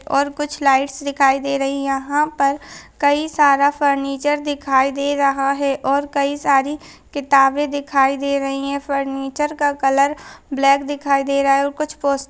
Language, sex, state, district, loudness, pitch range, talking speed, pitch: Hindi, female, Chhattisgarh, Kabirdham, -18 LUFS, 275-285 Hz, 160 wpm, 280 Hz